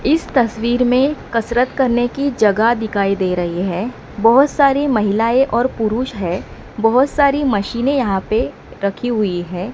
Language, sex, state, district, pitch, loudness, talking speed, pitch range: Hindi, female, Maharashtra, Mumbai Suburban, 235 Hz, -17 LUFS, 155 wpm, 205-265 Hz